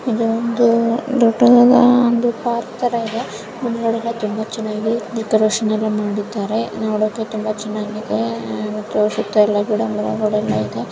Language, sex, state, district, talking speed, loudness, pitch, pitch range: Kannada, female, Karnataka, Bijapur, 100 wpm, -18 LUFS, 220 Hz, 215-235 Hz